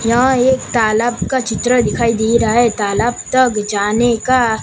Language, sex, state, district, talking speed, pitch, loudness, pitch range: Hindi, male, Gujarat, Gandhinagar, 170 wpm, 235 Hz, -14 LUFS, 220-250 Hz